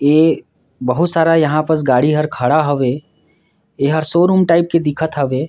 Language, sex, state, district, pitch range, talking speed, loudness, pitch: Surgujia, male, Chhattisgarh, Sarguja, 140-165 Hz, 175 wpm, -14 LUFS, 155 Hz